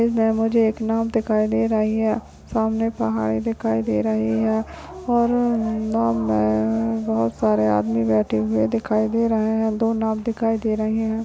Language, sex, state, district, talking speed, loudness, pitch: Hindi, male, Uttarakhand, Tehri Garhwal, 165 wpm, -21 LUFS, 220 Hz